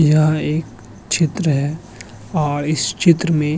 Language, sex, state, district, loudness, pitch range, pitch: Hindi, male, Uttar Pradesh, Hamirpur, -18 LUFS, 120-155 Hz, 150 Hz